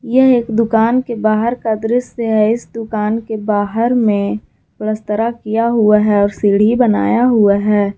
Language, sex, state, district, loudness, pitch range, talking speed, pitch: Hindi, female, Jharkhand, Garhwa, -14 LUFS, 210-235 Hz, 165 wpm, 220 Hz